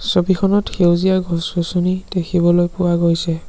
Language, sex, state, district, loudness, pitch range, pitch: Assamese, male, Assam, Sonitpur, -17 LUFS, 170-185 Hz, 175 Hz